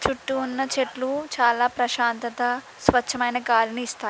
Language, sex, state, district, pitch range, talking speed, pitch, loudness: Telugu, female, Andhra Pradesh, Krishna, 240-265 Hz, 115 wpm, 245 Hz, -24 LUFS